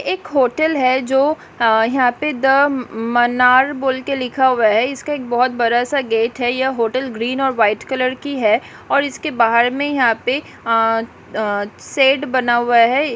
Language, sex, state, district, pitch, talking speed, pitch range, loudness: Hindi, female, Uttarakhand, Tehri Garhwal, 255 Hz, 180 wpm, 230-270 Hz, -17 LUFS